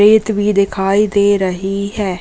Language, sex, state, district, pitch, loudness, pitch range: Hindi, female, Chhattisgarh, Raigarh, 200 Hz, -15 LUFS, 195-210 Hz